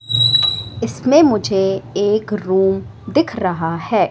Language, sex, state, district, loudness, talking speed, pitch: Hindi, female, Madhya Pradesh, Katni, -16 LUFS, 100 wpm, 190 Hz